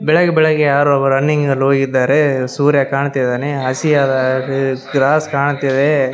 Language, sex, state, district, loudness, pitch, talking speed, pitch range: Kannada, male, Karnataka, Raichur, -14 LUFS, 140 Hz, 110 wpm, 135-145 Hz